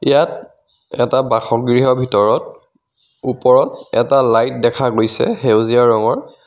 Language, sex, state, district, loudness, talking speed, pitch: Assamese, male, Assam, Kamrup Metropolitan, -15 LUFS, 100 wpm, 125 Hz